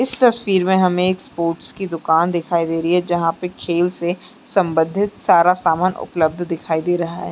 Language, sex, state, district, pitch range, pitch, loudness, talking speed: Hindi, female, Chhattisgarh, Sarguja, 165-185 Hz, 175 Hz, -18 LUFS, 195 wpm